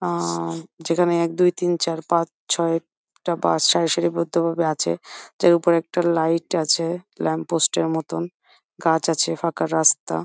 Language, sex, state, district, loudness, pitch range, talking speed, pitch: Bengali, female, West Bengal, Jhargram, -21 LUFS, 160-170 Hz, 165 wpm, 165 Hz